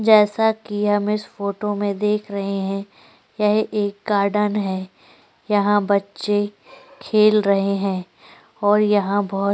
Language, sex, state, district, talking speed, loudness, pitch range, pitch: Hindi, female, Chhattisgarh, Korba, 140 wpm, -20 LUFS, 200-210 Hz, 205 Hz